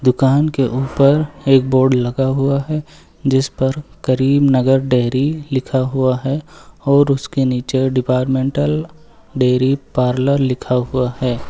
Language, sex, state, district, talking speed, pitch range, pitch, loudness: Hindi, male, Uttar Pradesh, Lucknow, 125 wpm, 130-140 Hz, 135 Hz, -16 LUFS